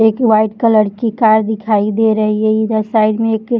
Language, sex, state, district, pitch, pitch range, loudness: Hindi, female, Bihar, Jahanabad, 220 Hz, 215-225 Hz, -13 LUFS